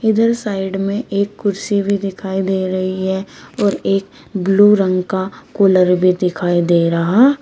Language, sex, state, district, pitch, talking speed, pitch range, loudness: Hindi, female, Uttar Pradesh, Shamli, 195 Hz, 160 wpm, 185-200 Hz, -16 LUFS